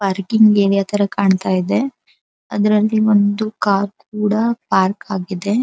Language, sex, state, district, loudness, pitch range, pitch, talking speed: Kannada, female, Karnataka, Dharwad, -17 LUFS, 195-215 Hz, 205 Hz, 115 wpm